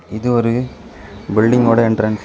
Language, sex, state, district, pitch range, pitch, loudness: Tamil, male, Tamil Nadu, Kanyakumari, 110-120 Hz, 115 Hz, -15 LUFS